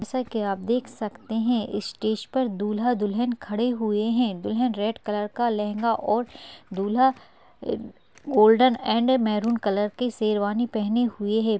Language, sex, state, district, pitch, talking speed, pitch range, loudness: Hindi, male, Uttar Pradesh, Jalaun, 225 Hz, 155 wpm, 210-245 Hz, -24 LUFS